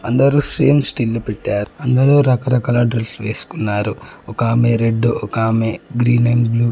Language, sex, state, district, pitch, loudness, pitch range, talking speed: Telugu, male, Telangana, Mahabubabad, 120 Hz, -16 LUFS, 115-125 Hz, 135 wpm